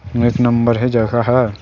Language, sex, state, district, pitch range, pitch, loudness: Chhattisgarhi, male, Chhattisgarh, Sarguja, 115-120 Hz, 120 Hz, -15 LUFS